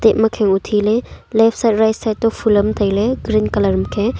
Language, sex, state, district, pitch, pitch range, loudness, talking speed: Wancho, female, Arunachal Pradesh, Longding, 220 Hz, 205-225 Hz, -16 LUFS, 200 wpm